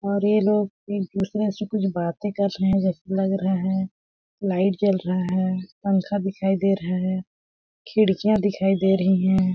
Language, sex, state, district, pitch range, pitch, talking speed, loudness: Hindi, female, Chhattisgarh, Balrampur, 185-200 Hz, 195 Hz, 175 wpm, -23 LUFS